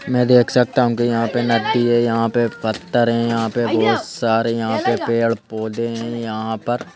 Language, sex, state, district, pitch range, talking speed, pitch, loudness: Hindi, male, Madhya Pradesh, Bhopal, 115-120 Hz, 205 wpm, 115 Hz, -18 LUFS